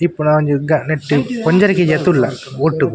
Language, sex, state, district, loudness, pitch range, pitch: Tulu, male, Karnataka, Dakshina Kannada, -15 LUFS, 145-175 Hz, 155 Hz